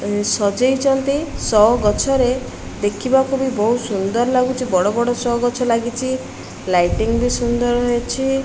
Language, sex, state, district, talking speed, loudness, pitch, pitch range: Odia, female, Odisha, Malkangiri, 120 wpm, -18 LUFS, 240 Hz, 215-260 Hz